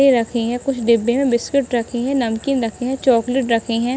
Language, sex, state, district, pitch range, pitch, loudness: Hindi, female, Uttar Pradesh, Ghazipur, 235-265 Hz, 245 Hz, -18 LUFS